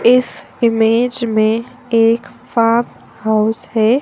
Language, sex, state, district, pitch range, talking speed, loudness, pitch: Hindi, female, Madhya Pradesh, Bhopal, 225-240 Hz, 105 wpm, -15 LUFS, 230 Hz